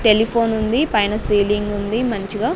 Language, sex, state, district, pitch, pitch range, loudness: Telugu, female, Andhra Pradesh, Sri Satya Sai, 215 Hz, 205-230 Hz, -18 LUFS